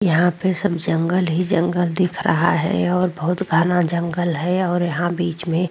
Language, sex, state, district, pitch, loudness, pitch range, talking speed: Hindi, female, Goa, North and South Goa, 175 Hz, -20 LUFS, 170-180 Hz, 200 wpm